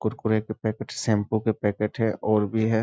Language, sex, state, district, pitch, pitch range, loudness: Hindi, male, Bihar, East Champaran, 110 Hz, 105-110 Hz, -25 LUFS